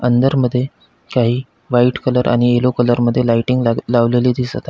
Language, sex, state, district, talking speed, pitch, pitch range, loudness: Marathi, male, Maharashtra, Pune, 165 wpm, 120 Hz, 120-125 Hz, -16 LUFS